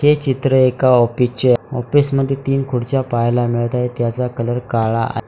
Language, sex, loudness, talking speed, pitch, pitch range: Marathi, male, -17 LUFS, 160 wpm, 125 Hz, 120-135 Hz